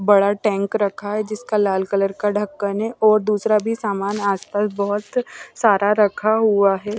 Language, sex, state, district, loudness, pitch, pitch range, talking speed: Hindi, female, Maharashtra, Washim, -19 LUFS, 205 Hz, 200-215 Hz, 170 wpm